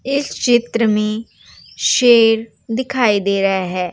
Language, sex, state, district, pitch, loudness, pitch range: Hindi, female, Uttar Pradesh, Jalaun, 225 Hz, -16 LUFS, 205-240 Hz